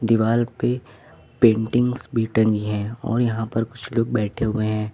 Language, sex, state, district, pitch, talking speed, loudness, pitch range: Hindi, male, Uttar Pradesh, Lucknow, 115 Hz, 170 wpm, -22 LUFS, 110-120 Hz